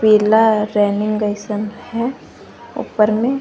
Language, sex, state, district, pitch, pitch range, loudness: Hindi, female, Jharkhand, Garhwa, 215 Hz, 210-225 Hz, -17 LUFS